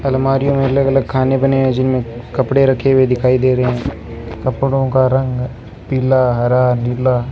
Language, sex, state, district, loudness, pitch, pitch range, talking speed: Hindi, male, Rajasthan, Bikaner, -15 LUFS, 130 Hz, 125-135 Hz, 180 wpm